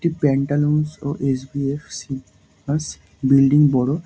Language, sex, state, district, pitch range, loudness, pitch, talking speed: Bengali, male, West Bengal, Purulia, 135-150 Hz, -20 LUFS, 140 Hz, 135 wpm